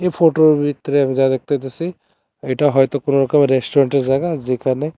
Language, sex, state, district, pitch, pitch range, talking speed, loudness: Bengali, male, Tripura, West Tripura, 140 Hz, 135-155 Hz, 145 wpm, -17 LUFS